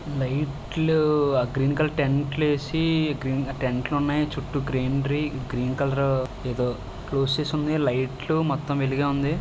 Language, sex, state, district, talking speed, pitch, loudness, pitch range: Telugu, male, Andhra Pradesh, Srikakulam, 140 wpm, 140 Hz, -25 LUFS, 130-150 Hz